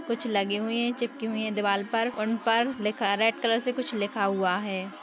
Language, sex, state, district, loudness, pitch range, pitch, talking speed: Hindi, female, Bihar, Kishanganj, -27 LUFS, 205-235 Hz, 225 Hz, 225 wpm